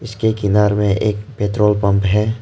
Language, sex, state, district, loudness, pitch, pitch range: Hindi, male, Arunachal Pradesh, Lower Dibang Valley, -16 LUFS, 105 Hz, 100-110 Hz